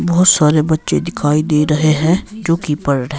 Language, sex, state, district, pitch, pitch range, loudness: Hindi, male, Himachal Pradesh, Shimla, 155 Hz, 150-175 Hz, -14 LUFS